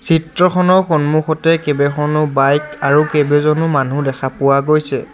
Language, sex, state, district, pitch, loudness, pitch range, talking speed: Assamese, male, Assam, Sonitpur, 150 Hz, -14 LUFS, 140-160 Hz, 115 wpm